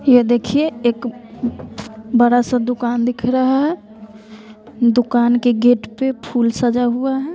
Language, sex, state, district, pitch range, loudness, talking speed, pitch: Hindi, female, Bihar, West Champaran, 230-250 Hz, -17 LUFS, 140 wpm, 240 Hz